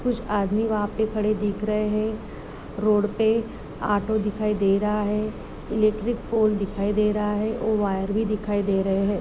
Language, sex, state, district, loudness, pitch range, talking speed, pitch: Hindi, female, Uttar Pradesh, Muzaffarnagar, -24 LUFS, 205-215 Hz, 180 wpm, 210 Hz